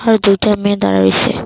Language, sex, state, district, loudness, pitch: Bengali, female, Assam, Kamrup Metropolitan, -13 LUFS, 205 Hz